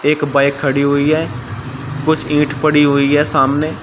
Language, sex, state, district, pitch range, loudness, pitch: Hindi, male, Uttar Pradesh, Shamli, 140-150 Hz, -14 LUFS, 145 Hz